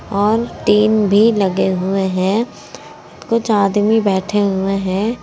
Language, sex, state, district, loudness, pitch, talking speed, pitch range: Hindi, female, Uttar Pradesh, Saharanpur, -16 LUFS, 205 Hz, 125 wpm, 195-220 Hz